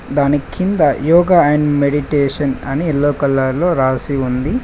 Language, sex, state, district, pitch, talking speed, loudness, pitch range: Telugu, male, Telangana, Mahabubabad, 145 Hz, 140 wpm, -15 LUFS, 135-155 Hz